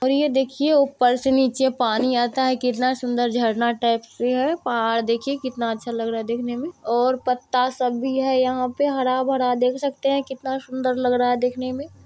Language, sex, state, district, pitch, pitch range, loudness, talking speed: Hindi, female, Bihar, Jamui, 255 Hz, 245-265 Hz, -22 LUFS, 205 wpm